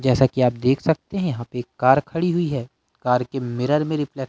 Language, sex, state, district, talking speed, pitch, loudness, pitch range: Hindi, male, Madhya Pradesh, Katni, 250 wpm, 130 Hz, -21 LUFS, 125-150 Hz